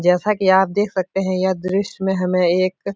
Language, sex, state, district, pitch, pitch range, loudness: Hindi, male, Uttar Pradesh, Etah, 190 Hz, 185-195 Hz, -18 LUFS